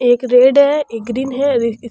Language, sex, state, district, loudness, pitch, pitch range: Rajasthani, female, Rajasthan, Churu, -14 LUFS, 250 Hz, 240-275 Hz